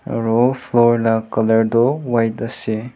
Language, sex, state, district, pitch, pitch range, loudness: Nagamese, male, Nagaland, Kohima, 115 Hz, 115-120 Hz, -17 LUFS